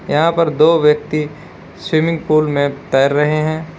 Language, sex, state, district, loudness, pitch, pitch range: Hindi, male, Uttar Pradesh, Lalitpur, -15 LUFS, 155 Hz, 150-165 Hz